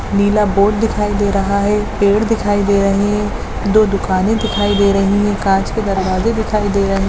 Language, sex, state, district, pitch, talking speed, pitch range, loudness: Hindi, female, Maharashtra, Dhule, 205 Hz, 195 wpm, 200-210 Hz, -15 LUFS